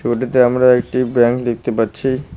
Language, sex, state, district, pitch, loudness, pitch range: Bengali, male, West Bengal, Cooch Behar, 125 Hz, -15 LUFS, 120-125 Hz